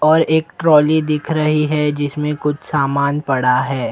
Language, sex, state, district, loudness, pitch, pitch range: Hindi, male, Maharashtra, Mumbai Suburban, -16 LUFS, 150 Hz, 145-155 Hz